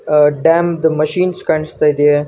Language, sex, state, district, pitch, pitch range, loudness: Kannada, male, Karnataka, Gulbarga, 155 Hz, 150-165 Hz, -14 LUFS